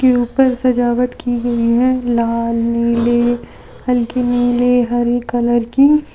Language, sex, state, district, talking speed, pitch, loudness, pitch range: Hindi, female, Jharkhand, Deoghar, 115 wpm, 245 Hz, -15 LUFS, 235-250 Hz